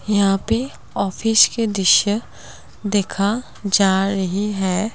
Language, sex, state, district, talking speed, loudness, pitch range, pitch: Hindi, female, Assam, Kamrup Metropolitan, 110 wpm, -18 LUFS, 195-220 Hz, 205 Hz